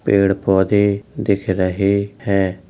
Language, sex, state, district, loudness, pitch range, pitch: Hindi, male, Uttar Pradesh, Jalaun, -18 LUFS, 95-100 Hz, 100 Hz